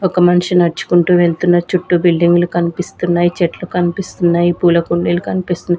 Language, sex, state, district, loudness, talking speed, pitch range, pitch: Telugu, female, Andhra Pradesh, Sri Satya Sai, -14 LUFS, 125 wpm, 175-180 Hz, 175 Hz